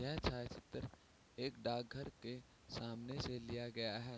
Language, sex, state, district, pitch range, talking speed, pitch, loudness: Hindi, male, Bihar, Sitamarhi, 115-125 Hz, 160 wpm, 120 Hz, -46 LUFS